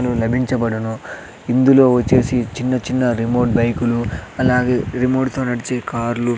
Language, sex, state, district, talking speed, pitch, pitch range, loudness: Telugu, male, Andhra Pradesh, Sri Satya Sai, 120 wpm, 125 Hz, 120-125 Hz, -17 LUFS